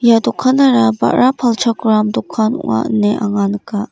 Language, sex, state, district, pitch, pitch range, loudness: Garo, female, Meghalaya, West Garo Hills, 220 Hz, 205-240 Hz, -14 LUFS